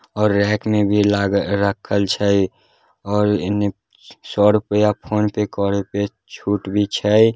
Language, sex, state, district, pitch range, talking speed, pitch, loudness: Hindi, male, Bihar, Darbhanga, 100-105 Hz, 140 wpm, 105 Hz, -19 LUFS